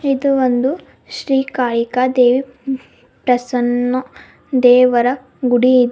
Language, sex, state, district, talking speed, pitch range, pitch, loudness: Kannada, female, Karnataka, Bidar, 80 wpm, 245-265 Hz, 255 Hz, -16 LUFS